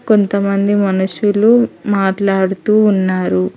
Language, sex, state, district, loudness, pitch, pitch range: Telugu, female, Telangana, Hyderabad, -14 LUFS, 200 Hz, 190-210 Hz